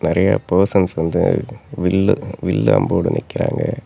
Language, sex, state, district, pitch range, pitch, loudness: Tamil, male, Tamil Nadu, Namakkal, 85-95 Hz, 95 Hz, -18 LUFS